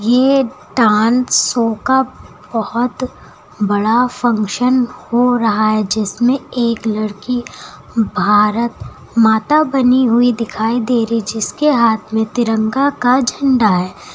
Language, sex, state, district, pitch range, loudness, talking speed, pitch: Hindi, female, Uttar Pradesh, Lucknow, 220-250 Hz, -15 LUFS, 115 wpm, 235 Hz